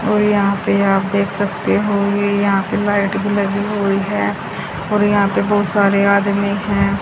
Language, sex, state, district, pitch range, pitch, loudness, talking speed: Hindi, female, Haryana, Rohtak, 200-205 Hz, 200 Hz, -16 LUFS, 190 wpm